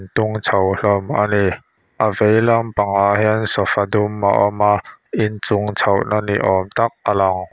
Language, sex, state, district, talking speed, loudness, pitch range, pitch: Mizo, male, Mizoram, Aizawl, 175 wpm, -17 LUFS, 100-110 Hz, 105 Hz